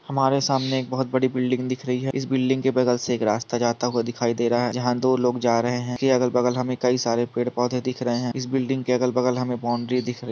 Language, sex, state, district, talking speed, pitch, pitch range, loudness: Hindi, male, Andhra Pradesh, Krishna, 255 wpm, 125 Hz, 120-130 Hz, -23 LUFS